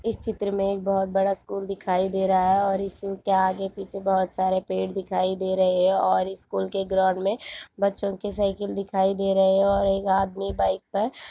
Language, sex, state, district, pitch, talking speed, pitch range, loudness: Hindi, female, Jharkhand, Jamtara, 195 Hz, 215 wpm, 190-195 Hz, -24 LUFS